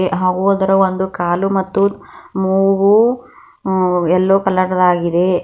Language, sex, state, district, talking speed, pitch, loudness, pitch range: Kannada, female, Karnataka, Bidar, 100 wpm, 190 Hz, -15 LUFS, 185-195 Hz